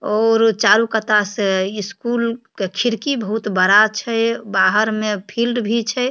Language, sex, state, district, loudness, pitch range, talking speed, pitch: Maithili, female, Bihar, Supaul, -17 LUFS, 210-230 Hz, 145 wpm, 220 Hz